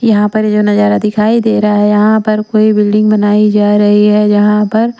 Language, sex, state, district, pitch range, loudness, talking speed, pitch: Hindi, female, Maharashtra, Washim, 210-215 Hz, -10 LUFS, 240 wpm, 210 Hz